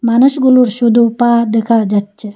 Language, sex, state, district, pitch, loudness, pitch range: Bengali, female, Assam, Hailakandi, 235 Hz, -11 LUFS, 225-245 Hz